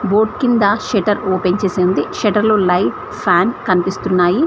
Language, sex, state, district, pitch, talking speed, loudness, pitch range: Telugu, female, Telangana, Mahabubabad, 200 Hz, 135 wpm, -15 LUFS, 180-210 Hz